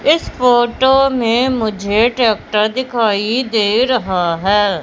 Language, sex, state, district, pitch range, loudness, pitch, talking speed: Hindi, female, Madhya Pradesh, Katni, 210-255 Hz, -14 LUFS, 230 Hz, 110 wpm